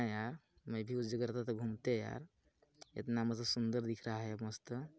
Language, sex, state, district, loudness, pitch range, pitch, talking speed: Hindi, male, Chhattisgarh, Balrampur, -40 LUFS, 110-120 Hz, 115 Hz, 205 wpm